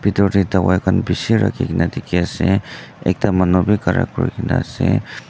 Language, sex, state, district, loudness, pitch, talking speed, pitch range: Nagamese, male, Nagaland, Dimapur, -18 LUFS, 95 Hz, 160 wpm, 90-100 Hz